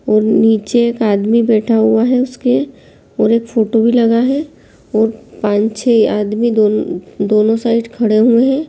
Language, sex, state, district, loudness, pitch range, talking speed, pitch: Hindi, female, Bihar, Lakhisarai, -13 LUFS, 215-235 Hz, 165 wpm, 225 Hz